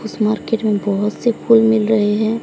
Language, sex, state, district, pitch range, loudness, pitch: Hindi, female, Odisha, Sambalpur, 210-225 Hz, -16 LUFS, 220 Hz